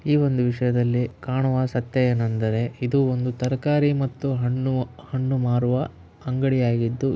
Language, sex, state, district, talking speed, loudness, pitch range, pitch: Kannada, male, Karnataka, Raichur, 110 wpm, -23 LUFS, 120-135 Hz, 125 Hz